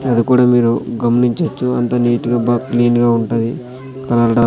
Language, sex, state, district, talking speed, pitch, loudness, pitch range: Telugu, male, Andhra Pradesh, Sri Satya Sai, 160 wpm, 120 Hz, -15 LUFS, 120-125 Hz